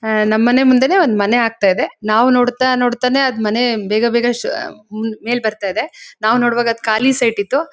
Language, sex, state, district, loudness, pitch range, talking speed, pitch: Kannada, female, Karnataka, Shimoga, -15 LUFS, 215-250 Hz, 195 wpm, 235 Hz